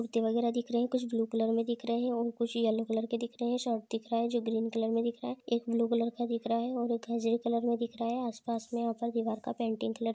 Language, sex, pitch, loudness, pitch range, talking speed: Hindi, female, 235 Hz, -33 LUFS, 230-235 Hz, 305 wpm